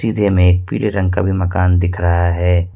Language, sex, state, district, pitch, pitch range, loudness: Hindi, male, Jharkhand, Ranchi, 90 Hz, 90-95 Hz, -15 LUFS